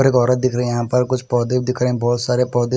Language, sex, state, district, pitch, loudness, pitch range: Hindi, male, Punjab, Kapurthala, 125 Hz, -18 LUFS, 120-125 Hz